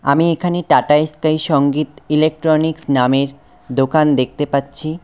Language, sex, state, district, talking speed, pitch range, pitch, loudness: Bengali, male, West Bengal, Cooch Behar, 120 wpm, 140-155 Hz, 150 Hz, -16 LUFS